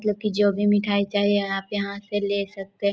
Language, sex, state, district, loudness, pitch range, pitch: Hindi, female, Chhattisgarh, Korba, -24 LUFS, 200-205 Hz, 205 Hz